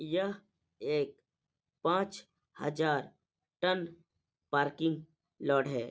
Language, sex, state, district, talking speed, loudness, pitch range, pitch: Hindi, male, Bihar, Supaul, 80 wpm, -34 LUFS, 150-190 Hz, 165 Hz